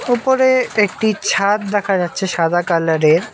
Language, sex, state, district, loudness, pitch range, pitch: Bengali, male, West Bengal, Alipurduar, -16 LUFS, 175-220 Hz, 200 Hz